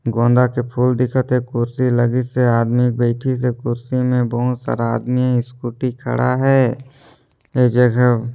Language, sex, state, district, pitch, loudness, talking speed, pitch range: Chhattisgarhi, male, Chhattisgarh, Sarguja, 125 Hz, -18 LUFS, 145 wpm, 120-125 Hz